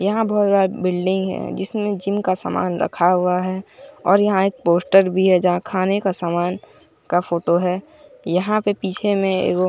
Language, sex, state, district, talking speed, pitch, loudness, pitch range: Hindi, male, Bihar, Katihar, 190 wpm, 190 Hz, -19 LUFS, 180-200 Hz